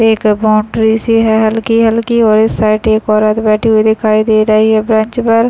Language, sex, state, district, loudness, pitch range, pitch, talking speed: Hindi, male, Bihar, Muzaffarpur, -11 LUFS, 215-225 Hz, 220 Hz, 205 wpm